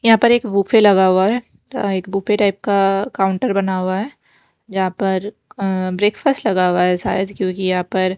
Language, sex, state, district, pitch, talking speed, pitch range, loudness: Hindi, female, Maharashtra, Mumbai Suburban, 195 Hz, 190 wpm, 185-205 Hz, -17 LUFS